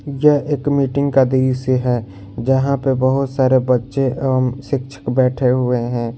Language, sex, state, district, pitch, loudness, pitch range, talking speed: Hindi, male, Jharkhand, Garhwa, 130 Hz, -17 LUFS, 125-135 Hz, 155 wpm